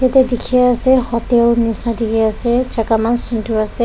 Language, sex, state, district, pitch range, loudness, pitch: Nagamese, female, Nagaland, Dimapur, 225-250 Hz, -15 LUFS, 235 Hz